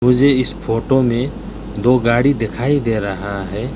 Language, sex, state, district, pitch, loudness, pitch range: Hindi, male, West Bengal, Alipurduar, 120 Hz, -17 LUFS, 105-130 Hz